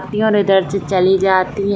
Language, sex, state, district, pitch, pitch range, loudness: Hindi, female, Bihar, Saran, 195 Hz, 190-200 Hz, -15 LUFS